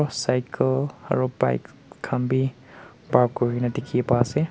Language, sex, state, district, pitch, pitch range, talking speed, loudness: Nagamese, male, Nagaland, Kohima, 125 Hz, 120-135 Hz, 135 wpm, -24 LUFS